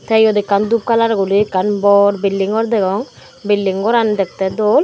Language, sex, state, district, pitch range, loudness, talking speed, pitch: Chakma, female, Tripura, Dhalai, 195-220 Hz, -15 LUFS, 185 wpm, 205 Hz